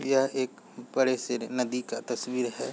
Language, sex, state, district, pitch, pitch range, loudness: Hindi, male, Chhattisgarh, Raigarh, 125 Hz, 125-130 Hz, -30 LUFS